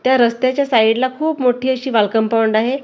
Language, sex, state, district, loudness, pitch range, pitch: Marathi, female, Maharashtra, Gondia, -16 LUFS, 225-260 Hz, 250 Hz